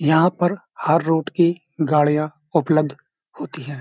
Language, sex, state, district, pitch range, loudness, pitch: Hindi, male, Uttar Pradesh, Jyotiba Phule Nagar, 150-170 Hz, -20 LUFS, 160 Hz